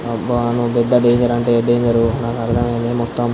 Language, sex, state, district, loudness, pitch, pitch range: Telugu, male, Andhra Pradesh, Anantapur, -16 LUFS, 120 Hz, 115-120 Hz